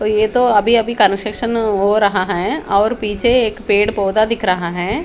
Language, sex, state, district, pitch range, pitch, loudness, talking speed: Hindi, female, Haryana, Charkhi Dadri, 200-225 Hz, 215 Hz, -15 LUFS, 200 wpm